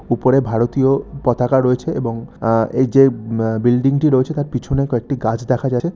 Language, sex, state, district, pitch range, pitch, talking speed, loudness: Bengali, male, West Bengal, North 24 Parganas, 120-135 Hz, 130 Hz, 180 wpm, -17 LUFS